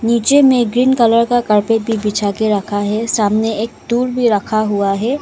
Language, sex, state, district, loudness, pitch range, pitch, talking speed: Hindi, female, Arunachal Pradesh, Lower Dibang Valley, -14 LUFS, 210-240 Hz, 225 Hz, 205 wpm